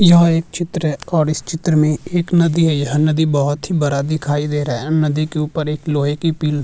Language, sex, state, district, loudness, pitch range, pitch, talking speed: Hindi, male, Bihar, Vaishali, -17 LUFS, 145-165 Hz, 155 Hz, 255 wpm